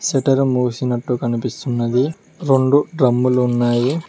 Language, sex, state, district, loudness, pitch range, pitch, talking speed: Telugu, male, Telangana, Mahabubabad, -18 LUFS, 120-135 Hz, 125 Hz, 90 wpm